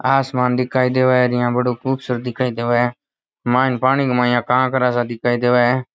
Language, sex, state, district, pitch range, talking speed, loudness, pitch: Rajasthani, male, Rajasthan, Nagaur, 120-130 Hz, 180 wpm, -18 LUFS, 125 Hz